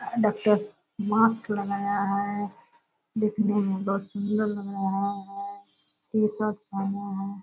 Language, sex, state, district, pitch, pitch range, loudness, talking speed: Hindi, female, Bihar, Purnia, 205 Hz, 200-215 Hz, -27 LUFS, 120 wpm